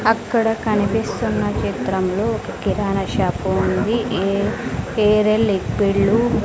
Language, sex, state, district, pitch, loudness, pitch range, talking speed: Telugu, female, Andhra Pradesh, Sri Satya Sai, 215 Hz, -19 LUFS, 200-225 Hz, 100 wpm